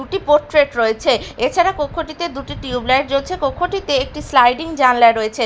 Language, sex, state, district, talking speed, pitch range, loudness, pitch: Bengali, female, Bihar, Katihar, 155 wpm, 250-330 Hz, -16 LUFS, 280 Hz